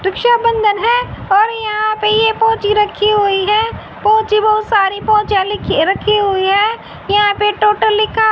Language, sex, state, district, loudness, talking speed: Hindi, female, Haryana, Jhajjar, -13 LUFS, 145 wpm